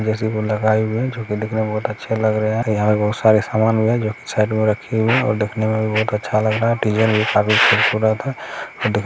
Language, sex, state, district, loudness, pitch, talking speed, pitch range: Hindi, male, Bihar, Bhagalpur, -18 LUFS, 110 Hz, 180 wpm, 105-110 Hz